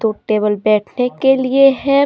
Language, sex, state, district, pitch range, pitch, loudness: Hindi, female, Jharkhand, Deoghar, 215-270 Hz, 250 Hz, -14 LUFS